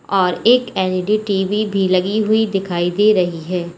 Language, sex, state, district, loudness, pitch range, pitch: Hindi, female, Uttar Pradesh, Lalitpur, -17 LUFS, 180-215 Hz, 195 Hz